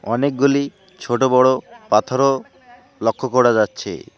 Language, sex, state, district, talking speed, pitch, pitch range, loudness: Bengali, male, West Bengal, Alipurduar, 100 wpm, 130 Hz, 120-140 Hz, -18 LUFS